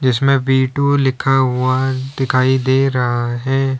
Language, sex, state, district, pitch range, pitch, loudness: Hindi, male, Uttar Pradesh, Lalitpur, 130-135 Hz, 130 Hz, -16 LUFS